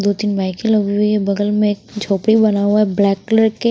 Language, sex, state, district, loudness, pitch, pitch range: Hindi, female, Haryana, Rohtak, -16 LUFS, 210 Hz, 200-215 Hz